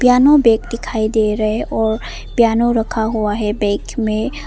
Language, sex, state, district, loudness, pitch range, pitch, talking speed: Hindi, female, Arunachal Pradesh, Papum Pare, -16 LUFS, 215-235 Hz, 220 Hz, 175 wpm